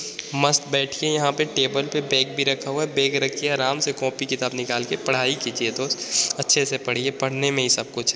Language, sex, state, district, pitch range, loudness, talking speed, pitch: Hindi, male, Bihar, Begusarai, 130-140 Hz, -22 LUFS, 245 wpm, 135 Hz